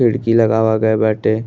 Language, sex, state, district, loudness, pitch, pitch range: Bhojpuri, male, Uttar Pradesh, Gorakhpur, -15 LUFS, 110 Hz, 110-115 Hz